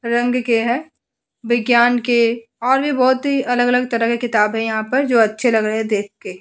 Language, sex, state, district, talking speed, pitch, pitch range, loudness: Hindi, female, Uttar Pradesh, Budaun, 225 wpm, 235 Hz, 225-250 Hz, -17 LUFS